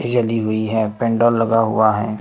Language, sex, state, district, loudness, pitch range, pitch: Hindi, male, Maharashtra, Gondia, -17 LUFS, 110-115 Hz, 110 Hz